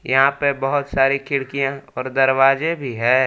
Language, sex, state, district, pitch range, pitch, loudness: Hindi, male, Jharkhand, Palamu, 130-140 Hz, 135 Hz, -19 LUFS